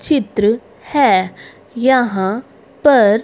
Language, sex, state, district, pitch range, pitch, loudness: Hindi, female, Haryana, Rohtak, 205-270 Hz, 235 Hz, -15 LUFS